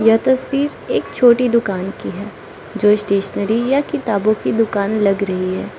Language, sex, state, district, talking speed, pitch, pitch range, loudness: Hindi, female, Arunachal Pradesh, Lower Dibang Valley, 165 wpm, 215 Hz, 200-245 Hz, -17 LUFS